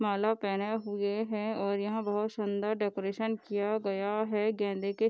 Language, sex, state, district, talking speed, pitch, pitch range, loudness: Hindi, female, Bihar, Darbhanga, 175 wpm, 210 Hz, 200-220 Hz, -32 LUFS